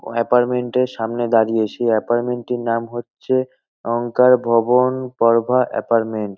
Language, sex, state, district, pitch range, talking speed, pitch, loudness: Bengali, male, West Bengal, North 24 Parganas, 115-125 Hz, 130 wpm, 120 Hz, -18 LUFS